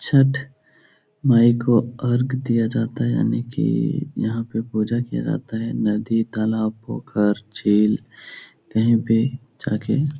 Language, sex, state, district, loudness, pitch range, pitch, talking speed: Hindi, male, Uttar Pradesh, Etah, -21 LUFS, 110-125 Hz, 115 Hz, 135 wpm